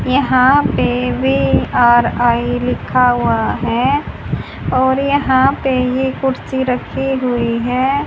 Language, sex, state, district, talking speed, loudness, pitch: Hindi, female, Haryana, Charkhi Dadri, 110 wpm, -15 LUFS, 250 Hz